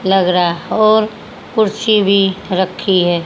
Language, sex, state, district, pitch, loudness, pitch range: Hindi, female, Haryana, Jhajjar, 195 Hz, -14 LUFS, 185-215 Hz